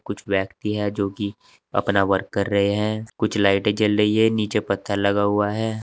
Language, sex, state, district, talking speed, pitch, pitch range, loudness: Hindi, male, Uttar Pradesh, Saharanpur, 205 wpm, 100 Hz, 100-105 Hz, -22 LUFS